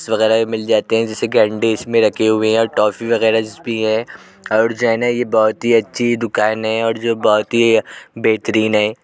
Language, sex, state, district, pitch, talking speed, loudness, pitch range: Hindi, male, Uttar Pradesh, Jyotiba Phule Nagar, 110 Hz, 220 wpm, -16 LUFS, 110-115 Hz